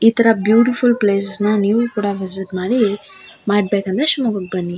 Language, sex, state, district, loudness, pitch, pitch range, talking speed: Kannada, female, Karnataka, Shimoga, -16 LUFS, 210 Hz, 195-235 Hz, 150 wpm